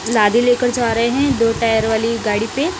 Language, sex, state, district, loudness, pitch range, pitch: Hindi, female, Punjab, Kapurthala, -16 LUFS, 225-245 Hz, 230 Hz